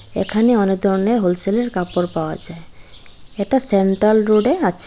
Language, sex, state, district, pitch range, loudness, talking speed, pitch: Bengali, female, Tripura, Dhalai, 180-215 Hz, -17 LUFS, 160 wpm, 200 Hz